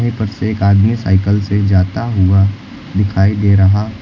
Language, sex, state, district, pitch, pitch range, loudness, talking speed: Hindi, male, Uttar Pradesh, Lucknow, 100 Hz, 95-110 Hz, -13 LUFS, 165 wpm